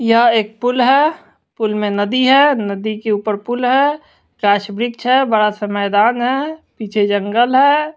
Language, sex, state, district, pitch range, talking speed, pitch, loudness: Hindi, male, Bihar, West Champaran, 210-265 Hz, 175 wpm, 235 Hz, -15 LUFS